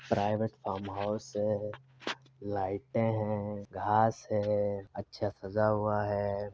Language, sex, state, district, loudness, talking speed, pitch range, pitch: Hindi, male, Uttar Pradesh, Muzaffarnagar, -33 LUFS, 100 wpm, 100-110 Hz, 105 Hz